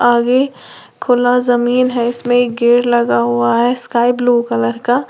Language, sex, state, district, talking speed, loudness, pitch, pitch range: Hindi, female, Uttar Pradesh, Lalitpur, 140 wpm, -14 LUFS, 245 Hz, 235-245 Hz